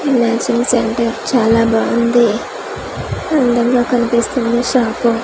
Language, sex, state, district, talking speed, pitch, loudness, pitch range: Telugu, female, Andhra Pradesh, Manyam, 115 wpm, 235 Hz, -15 LUFS, 230-245 Hz